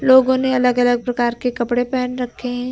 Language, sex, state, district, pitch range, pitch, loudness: Hindi, female, Uttar Pradesh, Lucknow, 245-255 Hz, 250 Hz, -18 LUFS